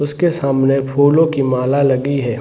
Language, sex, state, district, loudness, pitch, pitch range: Hindi, male, Bihar, Gaya, -15 LUFS, 140 Hz, 135-145 Hz